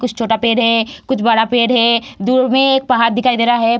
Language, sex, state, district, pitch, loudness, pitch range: Hindi, female, Bihar, Samastipur, 240 Hz, -14 LUFS, 230-255 Hz